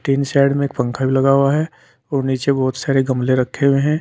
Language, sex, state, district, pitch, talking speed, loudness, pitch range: Hindi, male, Uttar Pradesh, Saharanpur, 135 Hz, 255 wpm, -17 LUFS, 130-140 Hz